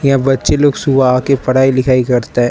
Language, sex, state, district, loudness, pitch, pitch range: Hindi, male, Arunachal Pradesh, Lower Dibang Valley, -12 LUFS, 130 Hz, 125-135 Hz